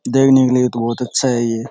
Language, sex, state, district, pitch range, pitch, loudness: Rajasthani, male, Rajasthan, Churu, 115-130 Hz, 125 Hz, -15 LUFS